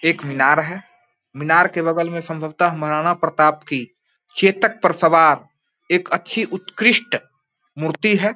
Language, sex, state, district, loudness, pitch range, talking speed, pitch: Hindi, male, Bihar, Samastipur, -18 LUFS, 155-185 Hz, 135 wpm, 170 Hz